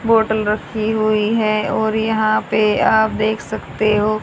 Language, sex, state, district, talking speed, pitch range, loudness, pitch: Hindi, female, Haryana, Charkhi Dadri, 155 wpm, 215-220 Hz, -17 LUFS, 215 Hz